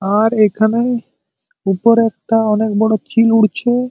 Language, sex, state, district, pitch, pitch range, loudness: Bengali, male, West Bengal, Malda, 220 Hz, 215-230 Hz, -14 LUFS